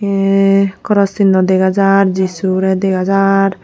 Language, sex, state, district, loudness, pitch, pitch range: Chakma, female, Tripura, Unakoti, -13 LUFS, 195 Hz, 190-195 Hz